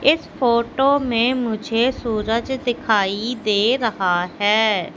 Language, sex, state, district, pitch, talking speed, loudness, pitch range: Hindi, female, Madhya Pradesh, Katni, 230 Hz, 110 wpm, -19 LUFS, 210-250 Hz